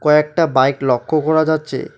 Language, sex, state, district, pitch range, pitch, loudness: Bengali, male, West Bengal, Alipurduar, 135-155 Hz, 150 Hz, -16 LUFS